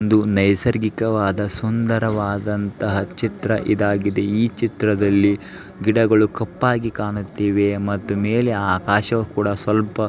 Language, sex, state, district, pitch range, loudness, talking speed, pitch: Kannada, male, Karnataka, Dharwad, 100-110 Hz, -20 LUFS, 95 wpm, 105 Hz